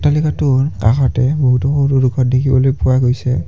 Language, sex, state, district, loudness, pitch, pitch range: Assamese, male, Assam, Kamrup Metropolitan, -14 LUFS, 130 Hz, 125-140 Hz